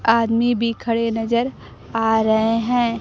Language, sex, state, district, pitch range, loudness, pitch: Hindi, female, Bihar, Kaimur, 225-235 Hz, -19 LUFS, 230 Hz